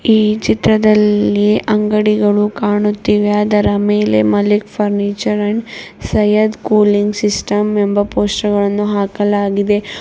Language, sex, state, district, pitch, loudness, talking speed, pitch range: Kannada, female, Karnataka, Bidar, 210 Hz, -14 LUFS, 90 wpm, 205-210 Hz